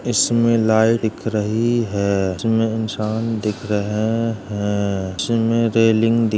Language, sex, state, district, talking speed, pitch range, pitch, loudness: Hindi, male, Uttar Pradesh, Jalaun, 130 wpm, 105-115 Hz, 110 Hz, -19 LUFS